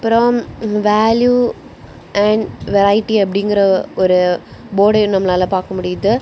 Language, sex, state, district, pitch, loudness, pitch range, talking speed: Tamil, female, Tamil Nadu, Kanyakumari, 205 Hz, -15 LUFS, 185-220 Hz, 95 wpm